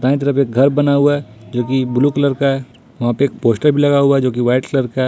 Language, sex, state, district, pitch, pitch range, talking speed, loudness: Hindi, male, Jharkhand, Ranchi, 135 Hz, 125-140 Hz, 320 wpm, -15 LUFS